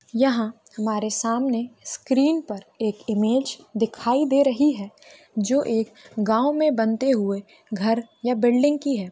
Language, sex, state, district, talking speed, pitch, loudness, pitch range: Hindi, female, Chhattisgarh, Bilaspur, 145 wpm, 235 Hz, -23 LUFS, 215-270 Hz